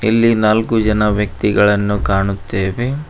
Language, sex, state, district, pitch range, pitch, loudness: Kannada, male, Karnataka, Koppal, 100-110 Hz, 105 Hz, -15 LUFS